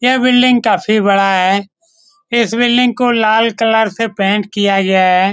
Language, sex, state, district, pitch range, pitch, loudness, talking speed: Hindi, male, Bihar, Saran, 195-245 Hz, 220 Hz, -12 LUFS, 170 wpm